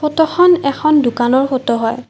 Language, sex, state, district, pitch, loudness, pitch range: Assamese, female, Assam, Kamrup Metropolitan, 275 Hz, -14 LUFS, 245-305 Hz